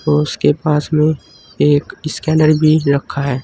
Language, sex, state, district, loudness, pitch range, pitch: Hindi, male, Uttar Pradesh, Saharanpur, -15 LUFS, 145-155 Hz, 150 Hz